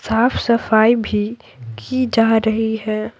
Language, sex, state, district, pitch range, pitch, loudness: Hindi, female, Bihar, Patna, 215-230 Hz, 220 Hz, -17 LUFS